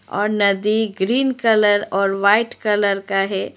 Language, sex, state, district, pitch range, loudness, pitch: Hindi, female, Arunachal Pradesh, Lower Dibang Valley, 195-215 Hz, -18 LUFS, 205 Hz